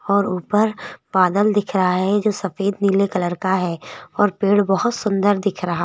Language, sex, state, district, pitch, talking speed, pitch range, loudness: Hindi, female, Madhya Pradesh, Bhopal, 200 Hz, 185 wpm, 185-205 Hz, -19 LUFS